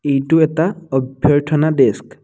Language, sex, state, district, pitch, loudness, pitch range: Assamese, male, Assam, Kamrup Metropolitan, 150 Hz, -16 LUFS, 135-160 Hz